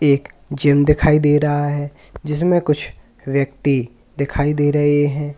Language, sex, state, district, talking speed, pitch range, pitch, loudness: Hindi, male, Uttar Pradesh, Lalitpur, 145 wpm, 140-150 Hz, 145 Hz, -17 LUFS